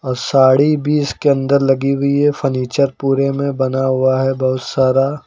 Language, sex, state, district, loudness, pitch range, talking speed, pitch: Hindi, male, Uttar Pradesh, Lucknow, -15 LUFS, 130-140 Hz, 180 wpm, 135 Hz